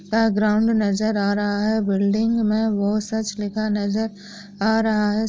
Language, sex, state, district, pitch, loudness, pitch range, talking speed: Hindi, female, Maharashtra, Sindhudurg, 215 Hz, -21 LUFS, 205-220 Hz, 160 wpm